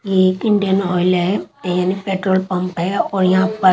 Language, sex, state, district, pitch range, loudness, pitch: Hindi, female, Chhattisgarh, Raipur, 185-195 Hz, -17 LUFS, 190 Hz